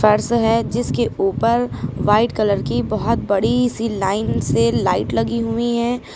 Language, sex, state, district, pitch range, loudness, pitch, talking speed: Hindi, female, Uttar Pradesh, Lucknow, 195-235 Hz, -18 LUFS, 225 Hz, 145 wpm